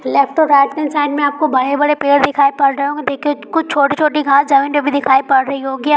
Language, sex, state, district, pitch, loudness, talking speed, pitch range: Hindi, female, Bihar, Begusarai, 285 Hz, -14 LUFS, 250 wpm, 275-295 Hz